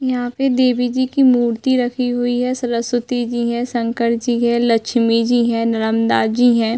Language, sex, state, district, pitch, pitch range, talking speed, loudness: Hindi, female, Uttar Pradesh, Hamirpur, 240 Hz, 235-250 Hz, 185 wpm, -17 LUFS